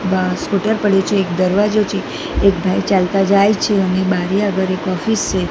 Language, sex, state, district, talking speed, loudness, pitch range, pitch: Gujarati, female, Gujarat, Gandhinagar, 195 wpm, -16 LUFS, 185-200 Hz, 195 Hz